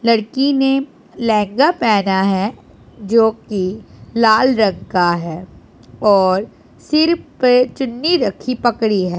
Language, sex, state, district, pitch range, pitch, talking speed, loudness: Hindi, female, Punjab, Pathankot, 195-260 Hz, 225 Hz, 110 wpm, -16 LUFS